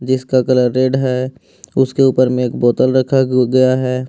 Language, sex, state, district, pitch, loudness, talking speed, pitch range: Hindi, male, Jharkhand, Ranchi, 130 Hz, -14 LUFS, 175 wpm, 125-130 Hz